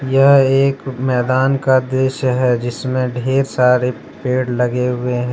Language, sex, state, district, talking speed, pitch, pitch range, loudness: Hindi, male, Jharkhand, Deoghar, 145 wpm, 130 Hz, 125-135 Hz, -16 LUFS